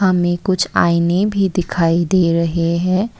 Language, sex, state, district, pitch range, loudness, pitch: Hindi, female, Assam, Kamrup Metropolitan, 170-190 Hz, -16 LUFS, 175 Hz